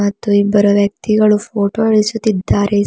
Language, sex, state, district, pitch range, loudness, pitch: Kannada, female, Karnataka, Bidar, 205-215 Hz, -14 LUFS, 205 Hz